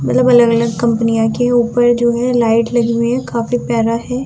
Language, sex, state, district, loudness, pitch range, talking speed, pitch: Hindi, female, Bihar, Vaishali, -14 LUFS, 230-245 Hz, 195 wpm, 235 Hz